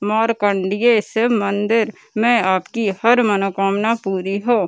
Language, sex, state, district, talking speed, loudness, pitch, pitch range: Hindi, female, Bihar, Gaya, 115 wpm, -18 LUFS, 215 Hz, 195-230 Hz